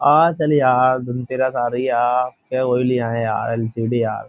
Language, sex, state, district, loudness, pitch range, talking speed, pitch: Hindi, male, Uttar Pradesh, Jyotiba Phule Nagar, -19 LUFS, 115-130 Hz, 225 wpm, 125 Hz